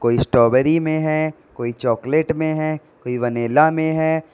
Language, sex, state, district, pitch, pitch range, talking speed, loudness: Hindi, male, Uttar Pradesh, Lalitpur, 155 Hz, 120-160 Hz, 165 wpm, -19 LUFS